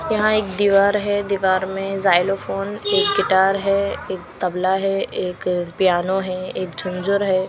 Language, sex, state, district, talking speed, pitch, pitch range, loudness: Hindi, female, Maharashtra, Washim, 150 wpm, 195 Hz, 185-200 Hz, -20 LUFS